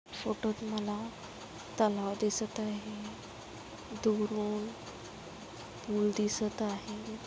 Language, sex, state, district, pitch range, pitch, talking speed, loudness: Marathi, female, Maharashtra, Dhule, 210-220 Hz, 215 Hz, 75 wpm, -35 LUFS